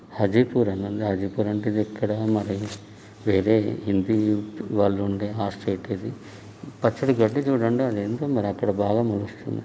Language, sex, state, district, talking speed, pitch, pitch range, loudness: Telugu, male, Telangana, Karimnagar, 125 wpm, 105 Hz, 100-115 Hz, -24 LUFS